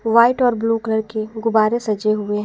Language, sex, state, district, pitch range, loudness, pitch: Hindi, female, Jharkhand, Garhwa, 215-230 Hz, -18 LUFS, 220 Hz